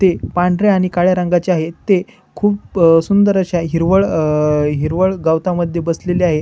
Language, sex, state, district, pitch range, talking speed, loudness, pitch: Marathi, male, Maharashtra, Chandrapur, 165-185 Hz, 170 wpm, -15 LUFS, 180 Hz